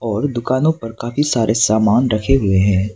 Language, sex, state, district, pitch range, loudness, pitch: Hindi, male, Arunachal Pradesh, Papum Pare, 105-130 Hz, -16 LUFS, 115 Hz